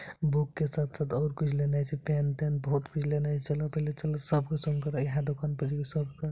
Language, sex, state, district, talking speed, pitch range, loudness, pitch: Maithili, male, Bihar, Supaul, 245 wpm, 145-150 Hz, -31 LUFS, 150 Hz